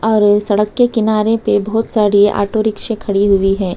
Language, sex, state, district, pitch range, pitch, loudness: Hindi, female, Uttar Pradesh, Budaun, 205-220 Hz, 210 Hz, -14 LUFS